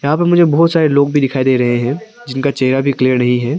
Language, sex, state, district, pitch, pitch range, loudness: Hindi, male, Arunachal Pradesh, Papum Pare, 140 Hz, 130-155 Hz, -13 LUFS